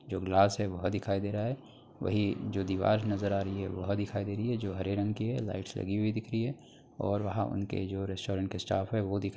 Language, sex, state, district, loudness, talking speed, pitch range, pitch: Hindi, male, Bihar, Begusarai, -33 LUFS, 270 wpm, 95-110 Hz, 100 Hz